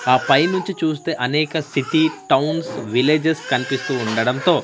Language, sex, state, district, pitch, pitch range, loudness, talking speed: Telugu, male, Andhra Pradesh, Manyam, 150 Hz, 125-160 Hz, -19 LUFS, 130 wpm